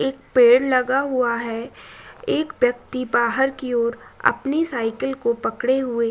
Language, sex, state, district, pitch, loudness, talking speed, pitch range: Hindi, female, Uttar Pradesh, Budaun, 255 Hz, -21 LUFS, 155 wpm, 235-270 Hz